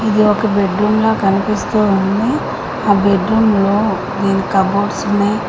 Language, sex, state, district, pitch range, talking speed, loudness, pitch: Telugu, female, Telangana, Mahabubabad, 195-215 Hz, 140 wpm, -15 LUFS, 205 Hz